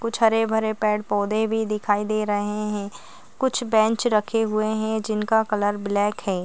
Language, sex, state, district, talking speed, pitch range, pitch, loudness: Hindi, female, Chhattisgarh, Balrampur, 165 wpm, 205-220 Hz, 215 Hz, -23 LUFS